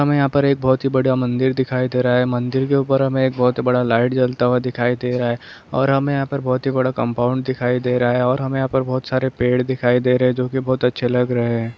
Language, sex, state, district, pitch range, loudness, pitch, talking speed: Hindi, male, Bihar, Darbhanga, 125-130 Hz, -18 LUFS, 125 Hz, 295 wpm